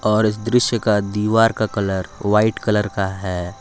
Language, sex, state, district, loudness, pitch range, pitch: Hindi, male, Jharkhand, Palamu, -19 LUFS, 100-110 Hz, 105 Hz